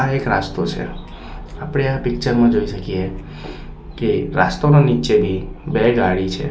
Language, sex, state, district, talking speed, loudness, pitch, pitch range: Gujarati, male, Gujarat, Valsad, 155 wpm, -18 LUFS, 120 Hz, 95-135 Hz